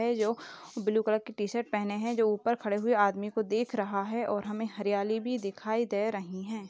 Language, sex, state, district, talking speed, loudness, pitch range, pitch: Hindi, female, Uttar Pradesh, Jyotiba Phule Nagar, 225 wpm, -31 LUFS, 205-225 Hz, 215 Hz